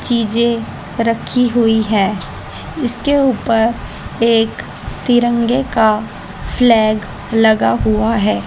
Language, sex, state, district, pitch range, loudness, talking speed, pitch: Hindi, female, Haryana, Jhajjar, 215-240 Hz, -15 LUFS, 90 wpm, 225 Hz